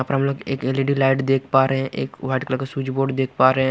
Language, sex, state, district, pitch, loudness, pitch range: Hindi, male, Bihar, Kaimur, 135 Hz, -21 LUFS, 130-135 Hz